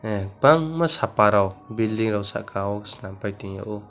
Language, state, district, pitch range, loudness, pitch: Kokborok, Tripura, West Tripura, 100-110 Hz, -22 LUFS, 105 Hz